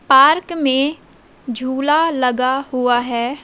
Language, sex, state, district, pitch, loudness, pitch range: Hindi, female, Madhya Pradesh, Umaria, 265 Hz, -16 LUFS, 250-290 Hz